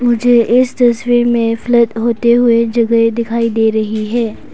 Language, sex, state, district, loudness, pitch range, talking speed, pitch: Hindi, female, Arunachal Pradesh, Papum Pare, -13 LUFS, 230-240 Hz, 160 wpm, 235 Hz